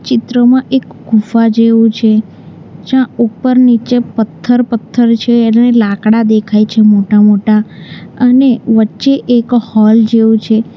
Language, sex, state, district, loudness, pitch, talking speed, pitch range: Gujarati, female, Gujarat, Valsad, -10 LUFS, 225 Hz, 125 wpm, 215-245 Hz